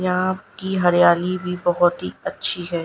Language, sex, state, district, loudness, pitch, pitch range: Hindi, female, Gujarat, Gandhinagar, -20 LUFS, 175 Hz, 175-185 Hz